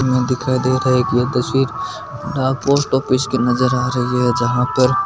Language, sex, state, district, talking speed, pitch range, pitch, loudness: Marwari, male, Rajasthan, Nagaur, 200 wpm, 125-130 Hz, 130 Hz, -17 LUFS